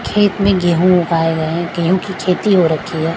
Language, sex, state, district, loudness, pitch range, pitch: Hindi, female, Punjab, Kapurthala, -15 LUFS, 165-190 Hz, 175 Hz